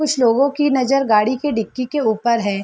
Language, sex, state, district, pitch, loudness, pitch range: Hindi, female, Bihar, Sitamarhi, 255 Hz, -17 LUFS, 225-275 Hz